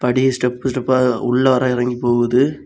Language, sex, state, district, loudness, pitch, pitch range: Tamil, male, Tamil Nadu, Kanyakumari, -17 LUFS, 125 Hz, 125-130 Hz